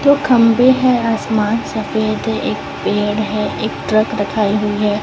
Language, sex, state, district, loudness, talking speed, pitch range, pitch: Hindi, female, Chhattisgarh, Raipur, -16 LUFS, 165 wpm, 210-235 Hz, 215 Hz